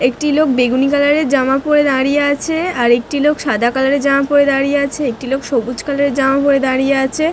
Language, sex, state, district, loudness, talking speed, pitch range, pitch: Bengali, female, West Bengal, Dakshin Dinajpur, -14 LUFS, 240 wpm, 265-290 Hz, 275 Hz